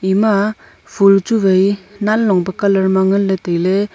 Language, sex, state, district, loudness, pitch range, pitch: Wancho, female, Arunachal Pradesh, Longding, -14 LUFS, 190-205 Hz, 195 Hz